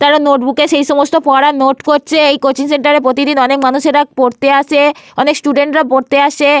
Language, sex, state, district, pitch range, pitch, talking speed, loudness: Bengali, female, Jharkhand, Sahebganj, 275-295 Hz, 285 Hz, 190 wpm, -11 LUFS